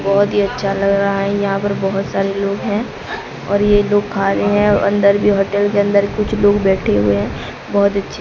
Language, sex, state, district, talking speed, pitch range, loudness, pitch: Hindi, female, Odisha, Sambalpur, 220 wpm, 195-205 Hz, -16 LUFS, 200 Hz